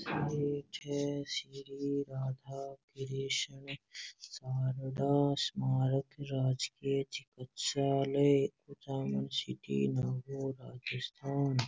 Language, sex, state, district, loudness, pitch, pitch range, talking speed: Rajasthani, male, Rajasthan, Nagaur, -35 LUFS, 135 Hz, 130-140 Hz, 35 wpm